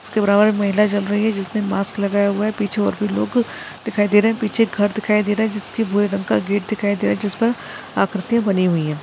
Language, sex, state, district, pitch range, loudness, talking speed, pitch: Hindi, female, Maharashtra, Chandrapur, 200-215 Hz, -19 LUFS, 270 wpm, 205 Hz